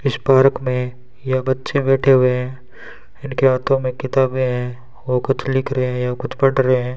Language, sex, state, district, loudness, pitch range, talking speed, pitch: Hindi, male, Rajasthan, Bikaner, -18 LUFS, 125-135 Hz, 200 wpm, 130 Hz